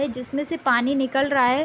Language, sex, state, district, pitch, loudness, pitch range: Hindi, female, Uttar Pradesh, Deoria, 270 Hz, -22 LUFS, 250-285 Hz